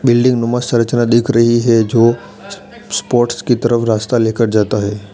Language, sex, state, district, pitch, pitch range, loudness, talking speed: Hindi, male, Uttar Pradesh, Lalitpur, 120 Hz, 115-120 Hz, -14 LUFS, 165 wpm